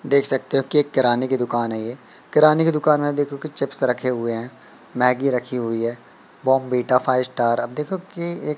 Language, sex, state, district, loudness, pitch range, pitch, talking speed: Hindi, male, Madhya Pradesh, Katni, -20 LUFS, 125-145 Hz, 130 Hz, 215 wpm